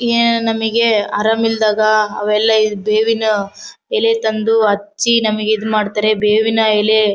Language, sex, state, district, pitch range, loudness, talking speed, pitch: Kannada, female, Karnataka, Bellary, 210-225 Hz, -15 LUFS, 135 wpm, 215 Hz